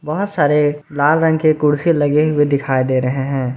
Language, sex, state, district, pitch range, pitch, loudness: Hindi, male, Jharkhand, Garhwa, 140-155 Hz, 145 Hz, -16 LUFS